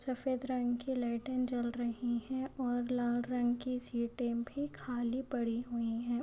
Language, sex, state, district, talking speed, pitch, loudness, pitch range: Hindi, male, Maharashtra, Dhule, 165 wpm, 245 Hz, -36 LUFS, 240-255 Hz